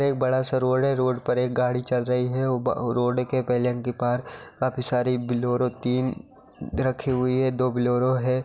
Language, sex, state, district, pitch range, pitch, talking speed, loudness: Hindi, male, Bihar, Jamui, 125-130 Hz, 125 Hz, 190 wpm, -24 LUFS